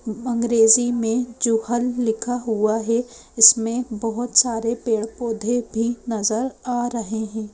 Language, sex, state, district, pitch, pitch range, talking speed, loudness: Hindi, female, Madhya Pradesh, Bhopal, 230 Hz, 225-240 Hz, 125 wpm, -20 LUFS